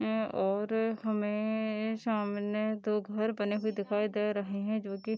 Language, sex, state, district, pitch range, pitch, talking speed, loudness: Hindi, female, Bihar, Darbhanga, 205-220 Hz, 215 Hz, 175 wpm, -32 LUFS